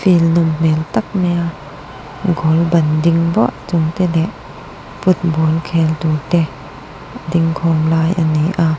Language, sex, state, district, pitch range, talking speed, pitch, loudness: Mizo, female, Mizoram, Aizawl, 155-170 Hz, 145 wpm, 165 Hz, -16 LUFS